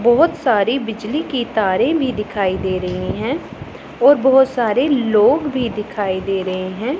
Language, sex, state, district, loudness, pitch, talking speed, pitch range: Hindi, female, Punjab, Pathankot, -17 LUFS, 235 Hz, 165 wpm, 200-265 Hz